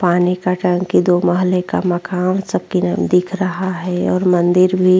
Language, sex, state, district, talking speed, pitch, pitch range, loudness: Hindi, female, Uttar Pradesh, Jyotiba Phule Nagar, 190 wpm, 180 Hz, 180-185 Hz, -16 LUFS